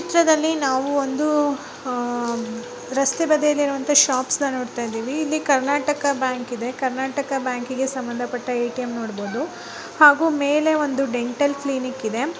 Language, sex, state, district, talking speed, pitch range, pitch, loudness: Kannada, female, Karnataka, Mysore, 120 wpm, 245-290 Hz, 265 Hz, -21 LUFS